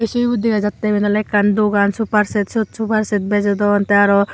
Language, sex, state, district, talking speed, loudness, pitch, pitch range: Chakma, female, Tripura, Unakoti, 195 wpm, -16 LUFS, 210 Hz, 205-220 Hz